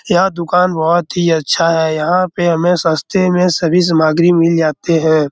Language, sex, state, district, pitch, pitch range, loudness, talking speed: Hindi, male, Bihar, Araria, 170 Hz, 160-180 Hz, -13 LUFS, 180 wpm